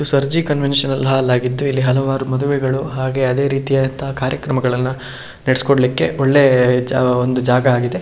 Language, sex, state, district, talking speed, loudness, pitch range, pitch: Kannada, male, Karnataka, Shimoga, 125 wpm, -16 LUFS, 125-140 Hz, 130 Hz